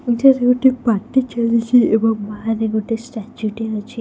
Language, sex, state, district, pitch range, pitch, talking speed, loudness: Odia, female, Odisha, Khordha, 220-245 Hz, 230 Hz, 150 wpm, -17 LUFS